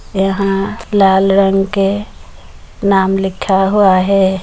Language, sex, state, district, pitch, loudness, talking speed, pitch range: Hindi, female, Bihar, Madhepura, 195 Hz, -13 LUFS, 110 wpm, 190-195 Hz